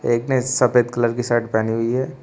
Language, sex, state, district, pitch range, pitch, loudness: Hindi, male, Uttar Pradesh, Shamli, 115-125 Hz, 120 Hz, -19 LUFS